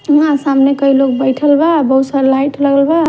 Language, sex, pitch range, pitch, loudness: Bhojpuri, female, 270-295 Hz, 280 Hz, -12 LUFS